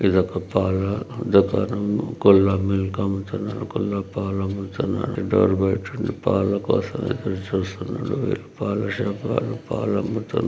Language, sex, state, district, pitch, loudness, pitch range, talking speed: Telugu, male, Andhra Pradesh, Krishna, 100 Hz, -23 LUFS, 95-105 Hz, 115 wpm